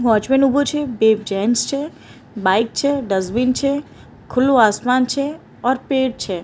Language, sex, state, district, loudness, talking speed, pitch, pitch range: Gujarati, female, Maharashtra, Mumbai Suburban, -18 LUFS, 150 wpm, 255 Hz, 220-275 Hz